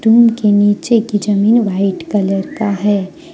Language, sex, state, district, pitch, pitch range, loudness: Hindi, female, Jharkhand, Deoghar, 205 Hz, 200-230 Hz, -14 LUFS